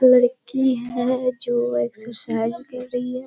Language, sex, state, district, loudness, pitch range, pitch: Hindi, female, Bihar, Kishanganj, -22 LUFS, 235-255 Hz, 245 Hz